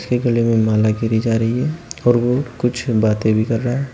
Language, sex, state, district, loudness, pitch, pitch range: Hindi, male, Uttar Pradesh, Shamli, -18 LUFS, 115 Hz, 110-125 Hz